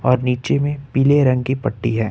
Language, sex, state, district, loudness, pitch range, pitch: Hindi, male, Jharkhand, Ranchi, -18 LUFS, 125-140 Hz, 130 Hz